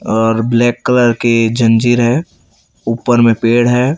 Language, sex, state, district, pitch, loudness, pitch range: Hindi, male, Chhattisgarh, Raipur, 120 Hz, -12 LUFS, 115-120 Hz